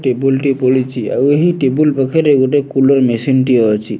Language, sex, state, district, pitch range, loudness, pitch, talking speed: Odia, male, Odisha, Nuapada, 130-140 Hz, -13 LUFS, 135 Hz, 180 wpm